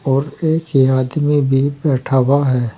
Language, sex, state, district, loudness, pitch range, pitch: Hindi, male, Uttar Pradesh, Saharanpur, -16 LUFS, 130-145 Hz, 135 Hz